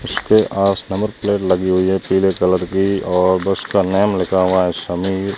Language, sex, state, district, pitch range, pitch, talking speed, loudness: Hindi, male, Rajasthan, Jaisalmer, 90-100 Hz, 95 Hz, 200 wpm, -17 LUFS